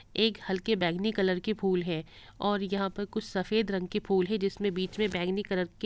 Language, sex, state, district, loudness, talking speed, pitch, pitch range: Hindi, female, Bihar, Gopalganj, -30 LUFS, 235 wpm, 195 Hz, 185-210 Hz